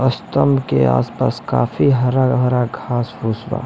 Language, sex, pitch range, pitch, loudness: Bhojpuri, male, 115-130 Hz, 125 Hz, -17 LUFS